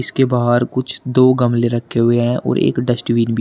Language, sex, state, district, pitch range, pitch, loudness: Hindi, male, Uttar Pradesh, Shamli, 120-125 Hz, 120 Hz, -16 LUFS